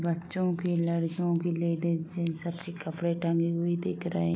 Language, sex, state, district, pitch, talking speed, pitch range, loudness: Hindi, female, Uttar Pradesh, Muzaffarnagar, 170 Hz, 180 wpm, 170-175 Hz, -30 LUFS